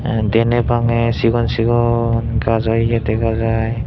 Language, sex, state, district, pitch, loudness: Chakma, male, Tripura, Dhalai, 115 Hz, -16 LUFS